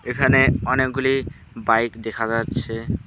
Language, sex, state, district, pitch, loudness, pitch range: Bengali, male, West Bengal, Alipurduar, 115 Hz, -21 LUFS, 115-130 Hz